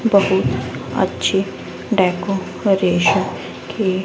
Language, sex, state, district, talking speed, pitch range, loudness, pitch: Hindi, female, Haryana, Rohtak, 60 wpm, 185-200 Hz, -18 LUFS, 195 Hz